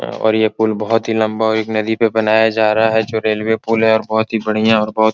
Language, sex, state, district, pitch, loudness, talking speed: Hindi, male, Bihar, Supaul, 110 Hz, -15 LUFS, 290 wpm